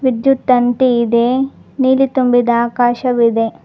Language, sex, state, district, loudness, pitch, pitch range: Kannada, female, Karnataka, Bangalore, -14 LUFS, 245 Hz, 235-260 Hz